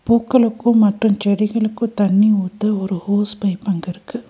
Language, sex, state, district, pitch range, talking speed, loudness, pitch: Tamil, female, Tamil Nadu, Nilgiris, 200-225 Hz, 140 wpm, -17 LUFS, 210 Hz